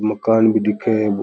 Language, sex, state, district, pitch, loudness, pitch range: Rajasthani, male, Rajasthan, Churu, 110 Hz, -17 LUFS, 105-110 Hz